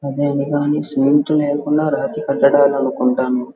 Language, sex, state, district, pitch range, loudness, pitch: Telugu, male, Andhra Pradesh, Guntur, 140-145 Hz, -16 LUFS, 140 Hz